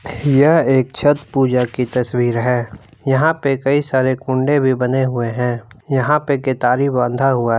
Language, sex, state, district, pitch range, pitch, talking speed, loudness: Hindi, male, Jharkhand, Palamu, 125-140 Hz, 130 Hz, 175 wpm, -16 LUFS